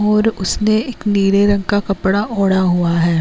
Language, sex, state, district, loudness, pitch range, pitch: Hindi, female, Uttarakhand, Uttarkashi, -15 LUFS, 190-210 Hz, 200 Hz